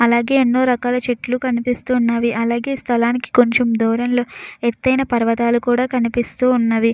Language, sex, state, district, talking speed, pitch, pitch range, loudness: Telugu, female, Andhra Pradesh, Chittoor, 120 wpm, 245 Hz, 235-250 Hz, -17 LUFS